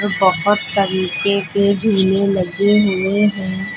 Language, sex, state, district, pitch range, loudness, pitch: Hindi, female, Uttar Pradesh, Lucknow, 190-200 Hz, -16 LUFS, 200 Hz